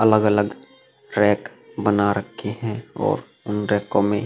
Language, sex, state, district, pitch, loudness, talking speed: Hindi, male, Uttar Pradesh, Jalaun, 105 Hz, -22 LUFS, 155 wpm